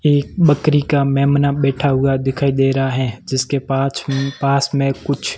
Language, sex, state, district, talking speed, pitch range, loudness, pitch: Hindi, male, Rajasthan, Barmer, 165 wpm, 135-140 Hz, -17 LUFS, 140 Hz